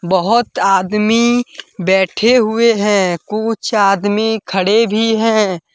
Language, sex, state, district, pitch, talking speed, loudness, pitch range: Hindi, male, Jharkhand, Deoghar, 215 Hz, 105 wpm, -14 LUFS, 195-225 Hz